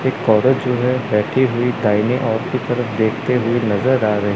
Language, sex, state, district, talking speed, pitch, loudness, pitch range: Hindi, male, Chandigarh, Chandigarh, 205 wpm, 120 Hz, -17 LUFS, 110-125 Hz